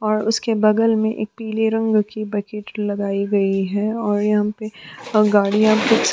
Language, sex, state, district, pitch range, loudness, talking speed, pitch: Hindi, female, Chhattisgarh, Sukma, 205-220 Hz, -19 LUFS, 165 wpm, 215 Hz